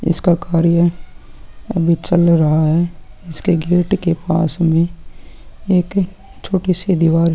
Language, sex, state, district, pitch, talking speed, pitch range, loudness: Hindi, male, Uttarakhand, Tehri Garhwal, 170 Hz, 130 wpm, 165-180 Hz, -16 LUFS